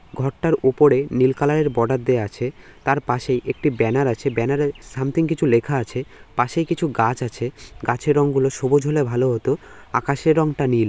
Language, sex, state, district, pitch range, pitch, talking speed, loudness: Bengali, male, West Bengal, North 24 Parganas, 125-145 Hz, 135 Hz, 180 wpm, -21 LUFS